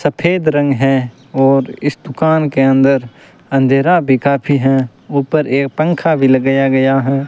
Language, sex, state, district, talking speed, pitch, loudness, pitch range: Hindi, male, Rajasthan, Bikaner, 155 wpm, 135 Hz, -13 LUFS, 135-150 Hz